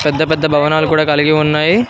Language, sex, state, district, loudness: Telugu, male, Telangana, Mahabubabad, -13 LUFS